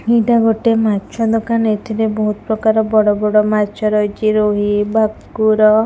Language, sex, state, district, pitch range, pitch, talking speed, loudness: Odia, female, Odisha, Khordha, 210-220 Hz, 215 Hz, 135 wpm, -15 LUFS